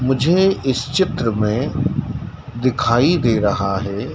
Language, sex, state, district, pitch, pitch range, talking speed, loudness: Hindi, male, Madhya Pradesh, Dhar, 130 Hz, 110-150 Hz, 115 wpm, -18 LUFS